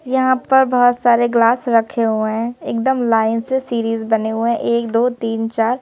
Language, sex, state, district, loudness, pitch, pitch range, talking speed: Hindi, female, Madhya Pradesh, Bhopal, -16 LUFS, 235 Hz, 225-250 Hz, 195 wpm